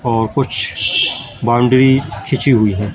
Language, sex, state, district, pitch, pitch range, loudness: Hindi, male, Madhya Pradesh, Katni, 120 Hz, 110-135 Hz, -14 LUFS